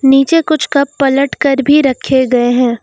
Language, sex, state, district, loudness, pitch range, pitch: Hindi, female, Uttar Pradesh, Lucknow, -11 LUFS, 260-285 Hz, 275 Hz